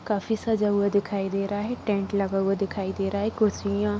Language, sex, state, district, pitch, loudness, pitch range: Hindi, female, Jharkhand, Sahebganj, 200 Hz, -26 LUFS, 195-210 Hz